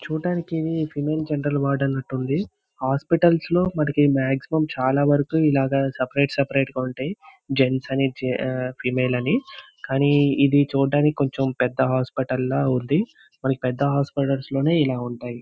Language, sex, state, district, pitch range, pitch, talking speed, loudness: Telugu, male, Andhra Pradesh, Visakhapatnam, 130-150 Hz, 140 Hz, 135 wpm, -22 LUFS